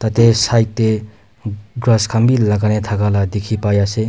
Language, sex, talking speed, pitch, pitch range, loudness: Nagamese, male, 190 wpm, 110 Hz, 105-115 Hz, -15 LUFS